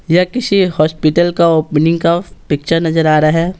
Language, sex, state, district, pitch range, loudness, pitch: Hindi, male, Bihar, Patna, 155-175 Hz, -13 LUFS, 165 Hz